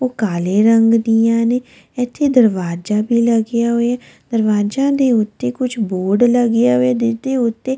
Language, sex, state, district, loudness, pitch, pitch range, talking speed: Punjabi, female, Delhi, New Delhi, -16 LUFS, 235 Hz, 215-250 Hz, 175 wpm